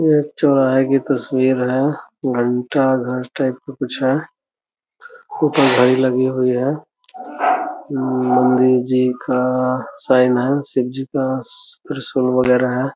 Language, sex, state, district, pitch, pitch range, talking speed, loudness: Hindi, male, Bihar, Muzaffarpur, 130 Hz, 125-145 Hz, 125 wpm, -17 LUFS